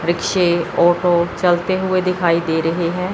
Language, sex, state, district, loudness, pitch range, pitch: Hindi, female, Chandigarh, Chandigarh, -17 LUFS, 170-180 Hz, 175 Hz